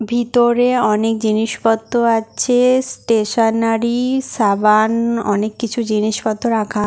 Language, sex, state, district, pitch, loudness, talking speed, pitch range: Bengali, female, West Bengal, Paschim Medinipur, 225 Hz, -16 LUFS, 85 wpm, 215-240 Hz